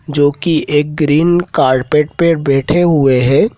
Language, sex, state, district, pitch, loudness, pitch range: Hindi, male, Madhya Pradesh, Dhar, 150 Hz, -12 LUFS, 145-170 Hz